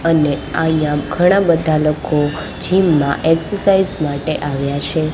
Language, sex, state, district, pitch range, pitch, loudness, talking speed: Gujarati, female, Gujarat, Gandhinagar, 145-165 Hz, 155 Hz, -16 LUFS, 130 wpm